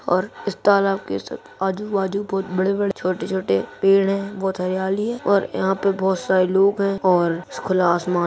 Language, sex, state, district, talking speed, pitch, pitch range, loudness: Hindi, female, Bihar, Purnia, 180 wpm, 190 Hz, 185-195 Hz, -21 LUFS